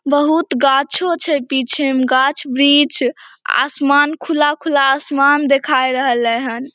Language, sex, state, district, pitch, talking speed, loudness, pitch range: Maithili, female, Bihar, Samastipur, 280 Hz, 115 wpm, -15 LUFS, 260-295 Hz